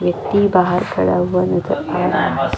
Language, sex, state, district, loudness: Hindi, female, Chhattisgarh, Jashpur, -17 LUFS